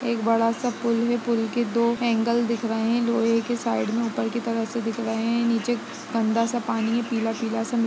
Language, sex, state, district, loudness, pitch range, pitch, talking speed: Hindi, female, Uttar Pradesh, Jyotiba Phule Nagar, -24 LUFS, 225-235 Hz, 230 Hz, 230 wpm